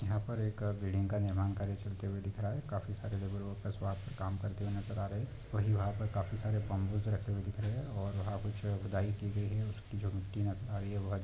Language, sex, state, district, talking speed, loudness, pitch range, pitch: Hindi, male, West Bengal, Jalpaiguri, 270 wpm, -38 LUFS, 100-105 Hz, 100 Hz